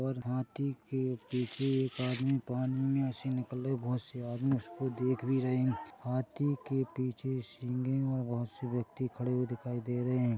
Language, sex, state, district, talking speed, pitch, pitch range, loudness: Hindi, male, Chhattisgarh, Korba, 195 wpm, 130 Hz, 125-130 Hz, -35 LUFS